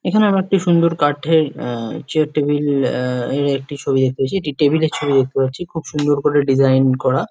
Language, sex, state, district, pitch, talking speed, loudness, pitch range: Bengali, male, West Bengal, Jalpaiguri, 145 Hz, 215 wpm, -17 LUFS, 135-160 Hz